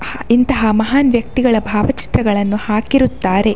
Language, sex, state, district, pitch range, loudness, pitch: Kannada, female, Karnataka, Dakshina Kannada, 210-255 Hz, -15 LUFS, 220 Hz